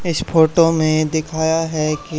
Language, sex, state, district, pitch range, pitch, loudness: Hindi, male, Haryana, Charkhi Dadri, 155-165 Hz, 160 Hz, -17 LUFS